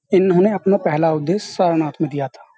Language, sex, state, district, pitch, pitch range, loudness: Hindi, male, Uttar Pradesh, Jyotiba Phule Nagar, 180 Hz, 160-195 Hz, -18 LUFS